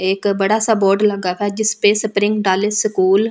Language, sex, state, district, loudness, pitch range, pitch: Hindi, female, Delhi, New Delhi, -16 LUFS, 195-215 Hz, 205 Hz